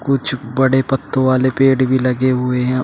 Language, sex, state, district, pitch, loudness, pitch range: Hindi, male, Uttar Pradesh, Shamli, 130 Hz, -16 LUFS, 125-130 Hz